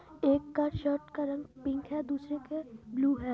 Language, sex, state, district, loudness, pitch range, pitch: Hindi, female, Uttar Pradesh, Etah, -33 LUFS, 275-295 Hz, 285 Hz